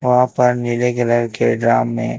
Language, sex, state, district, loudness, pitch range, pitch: Hindi, male, Maharashtra, Gondia, -16 LUFS, 115-125 Hz, 120 Hz